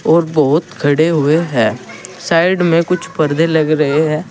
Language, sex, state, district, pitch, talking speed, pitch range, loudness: Hindi, male, Uttar Pradesh, Saharanpur, 160 Hz, 165 wpm, 155-175 Hz, -14 LUFS